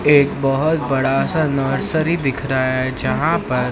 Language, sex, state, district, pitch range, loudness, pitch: Hindi, male, Maharashtra, Mumbai Suburban, 130-155 Hz, -18 LUFS, 135 Hz